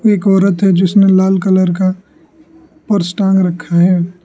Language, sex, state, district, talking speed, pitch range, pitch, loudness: Hindi, male, Arunachal Pradesh, Lower Dibang Valley, 155 wpm, 185-200 Hz, 190 Hz, -12 LUFS